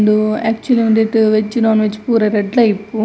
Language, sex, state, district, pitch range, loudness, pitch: Tulu, female, Karnataka, Dakshina Kannada, 215-225 Hz, -14 LUFS, 220 Hz